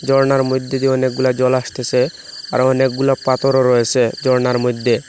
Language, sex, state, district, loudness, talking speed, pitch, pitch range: Bengali, male, Assam, Hailakandi, -16 LUFS, 140 wpm, 130 Hz, 125-135 Hz